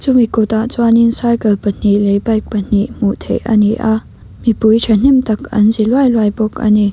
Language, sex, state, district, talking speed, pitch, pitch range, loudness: Mizo, female, Mizoram, Aizawl, 210 wpm, 220 Hz, 210-235 Hz, -13 LUFS